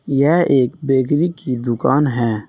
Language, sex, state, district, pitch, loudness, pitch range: Hindi, male, Uttar Pradesh, Saharanpur, 135 Hz, -17 LUFS, 125-145 Hz